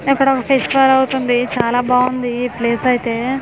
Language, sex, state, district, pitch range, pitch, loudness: Telugu, female, Andhra Pradesh, Manyam, 245-265 Hz, 250 Hz, -15 LUFS